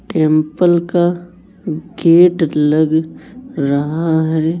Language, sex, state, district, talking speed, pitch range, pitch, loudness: Hindi, male, Chhattisgarh, Raipur, 80 wpm, 155-175 Hz, 165 Hz, -14 LUFS